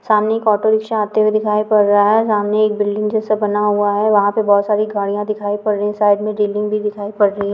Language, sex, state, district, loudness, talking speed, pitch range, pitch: Hindi, female, Jharkhand, Sahebganj, -16 LUFS, 280 wpm, 205-215 Hz, 210 Hz